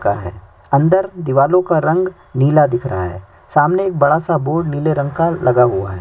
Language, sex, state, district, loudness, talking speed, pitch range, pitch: Hindi, male, Chhattisgarh, Sukma, -15 LUFS, 210 wpm, 120-170 Hz, 145 Hz